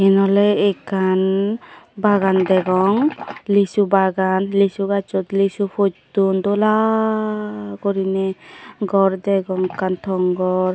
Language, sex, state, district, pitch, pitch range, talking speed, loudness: Chakma, female, Tripura, Dhalai, 195 Hz, 190-205 Hz, 100 wpm, -18 LUFS